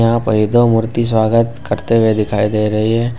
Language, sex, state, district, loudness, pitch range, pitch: Hindi, male, Jharkhand, Ranchi, -14 LUFS, 105-115 Hz, 115 Hz